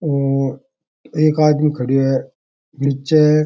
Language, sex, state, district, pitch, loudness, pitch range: Rajasthani, male, Rajasthan, Churu, 145 Hz, -17 LUFS, 135-155 Hz